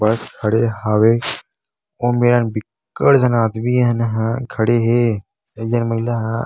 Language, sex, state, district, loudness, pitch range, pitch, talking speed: Chhattisgarhi, male, Chhattisgarh, Bastar, -17 LUFS, 110-120 Hz, 115 Hz, 150 wpm